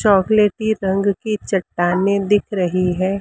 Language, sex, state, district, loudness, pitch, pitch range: Hindi, female, Maharashtra, Mumbai Suburban, -18 LUFS, 200 Hz, 185-210 Hz